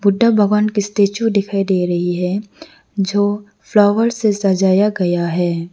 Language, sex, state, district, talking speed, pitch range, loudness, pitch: Hindi, female, Arunachal Pradesh, Lower Dibang Valley, 145 wpm, 190-210 Hz, -16 LUFS, 200 Hz